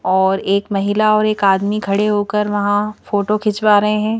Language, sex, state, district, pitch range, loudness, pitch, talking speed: Hindi, female, Madhya Pradesh, Bhopal, 200-210 Hz, -16 LUFS, 205 Hz, 185 wpm